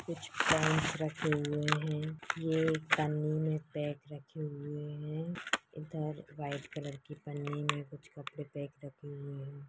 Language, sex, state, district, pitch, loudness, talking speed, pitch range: Hindi, female, Uttar Pradesh, Deoria, 150 Hz, -36 LUFS, 150 wpm, 145-155 Hz